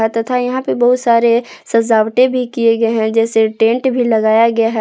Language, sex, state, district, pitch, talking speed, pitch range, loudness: Hindi, female, Jharkhand, Palamu, 230 Hz, 200 wpm, 225-245 Hz, -13 LUFS